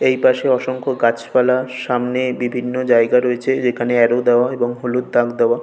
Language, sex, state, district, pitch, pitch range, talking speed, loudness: Bengali, male, West Bengal, North 24 Parganas, 125 Hz, 120-130 Hz, 170 wpm, -17 LUFS